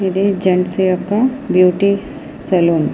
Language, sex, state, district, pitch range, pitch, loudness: Telugu, female, Andhra Pradesh, Srikakulam, 180-205 Hz, 190 Hz, -15 LUFS